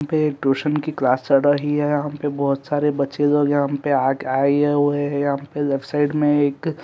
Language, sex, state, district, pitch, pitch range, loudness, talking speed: Hindi, male, Chhattisgarh, Rajnandgaon, 145 Hz, 140-145 Hz, -20 LUFS, 220 wpm